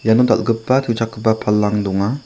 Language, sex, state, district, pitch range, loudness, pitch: Garo, male, Meghalaya, South Garo Hills, 105-115 Hz, -17 LUFS, 110 Hz